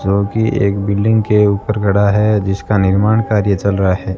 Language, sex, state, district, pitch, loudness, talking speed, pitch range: Hindi, male, Rajasthan, Bikaner, 100 Hz, -14 LUFS, 200 wpm, 100-105 Hz